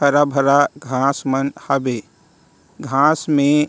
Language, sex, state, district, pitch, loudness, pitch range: Chhattisgarhi, male, Chhattisgarh, Rajnandgaon, 140 Hz, -18 LUFS, 135-145 Hz